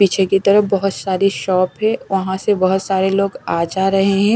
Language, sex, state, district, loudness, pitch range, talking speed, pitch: Hindi, female, Chandigarh, Chandigarh, -16 LUFS, 190-200 Hz, 220 wpm, 195 Hz